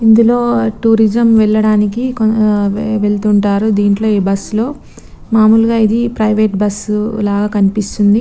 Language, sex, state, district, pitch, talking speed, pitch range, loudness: Telugu, female, Telangana, Nalgonda, 215 Hz, 100 wpm, 205-225 Hz, -12 LUFS